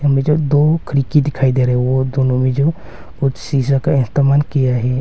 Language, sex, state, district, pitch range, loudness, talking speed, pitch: Hindi, male, Arunachal Pradesh, Longding, 130-145 Hz, -15 LUFS, 215 wpm, 135 Hz